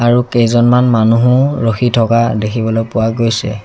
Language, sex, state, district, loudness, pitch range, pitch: Assamese, male, Assam, Sonitpur, -12 LUFS, 115-120 Hz, 115 Hz